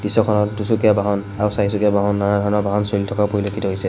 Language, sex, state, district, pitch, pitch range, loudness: Assamese, male, Assam, Sonitpur, 105 Hz, 100-105 Hz, -19 LUFS